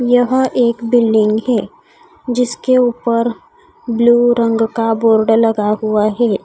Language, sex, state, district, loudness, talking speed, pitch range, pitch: Hindi, female, Odisha, Khordha, -14 LUFS, 120 wpm, 225-245 Hz, 235 Hz